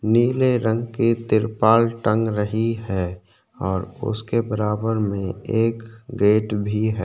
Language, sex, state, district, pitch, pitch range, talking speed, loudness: Hindi, male, Uttarakhand, Tehri Garhwal, 110 Hz, 105-115 Hz, 130 wpm, -21 LUFS